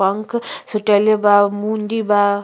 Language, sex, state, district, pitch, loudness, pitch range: Bhojpuri, female, Uttar Pradesh, Ghazipur, 210 Hz, -17 LUFS, 205-215 Hz